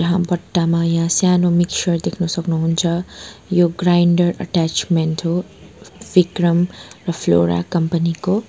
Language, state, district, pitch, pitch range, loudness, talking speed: Nepali, West Bengal, Darjeeling, 170 Hz, 170-175 Hz, -18 LUFS, 115 wpm